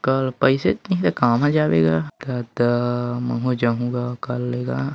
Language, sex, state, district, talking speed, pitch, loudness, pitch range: Chhattisgarhi, male, Chhattisgarh, Bilaspur, 220 wpm, 120 Hz, -21 LUFS, 105-130 Hz